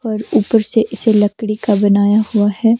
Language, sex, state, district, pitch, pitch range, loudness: Hindi, female, Himachal Pradesh, Shimla, 215 Hz, 205-225 Hz, -14 LUFS